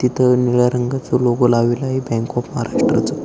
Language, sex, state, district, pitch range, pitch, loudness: Marathi, male, Maharashtra, Aurangabad, 120-125 Hz, 125 Hz, -17 LUFS